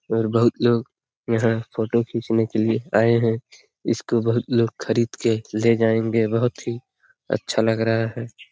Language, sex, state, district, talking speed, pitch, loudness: Hindi, male, Bihar, Lakhisarai, 170 wpm, 115 Hz, -22 LUFS